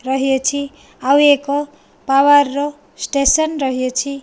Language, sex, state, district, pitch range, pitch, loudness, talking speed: Odia, female, Odisha, Nuapada, 270-290 Hz, 280 Hz, -16 LUFS, 100 wpm